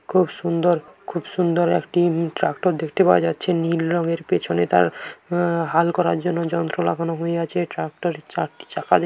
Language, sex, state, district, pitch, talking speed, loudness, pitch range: Bengali, male, West Bengal, Jhargram, 170 Hz, 180 wpm, -21 LUFS, 165-175 Hz